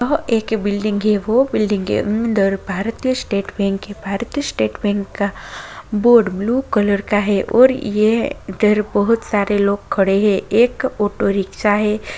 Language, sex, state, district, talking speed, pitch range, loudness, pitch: Bhojpuri, female, Bihar, Saran, 165 wpm, 200-230 Hz, -17 LUFS, 210 Hz